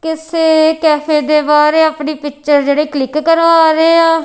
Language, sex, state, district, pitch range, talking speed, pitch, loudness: Punjabi, female, Punjab, Kapurthala, 300-320 Hz, 170 wpm, 310 Hz, -11 LUFS